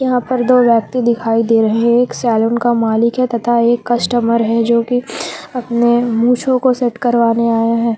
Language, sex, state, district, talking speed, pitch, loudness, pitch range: Hindi, female, Jharkhand, Palamu, 180 wpm, 235 Hz, -14 LUFS, 230-245 Hz